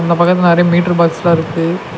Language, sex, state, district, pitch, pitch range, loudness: Tamil, male, Tamil Nadu, Nilgiris, 170 Hz, 165-175 Hz, -12 LUFS